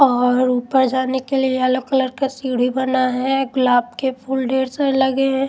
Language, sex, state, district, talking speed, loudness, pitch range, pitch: Hindi, female, Punjab, Pathankot, 195 wpm, -18 LUFS, 255-265 Hz, 260 Hz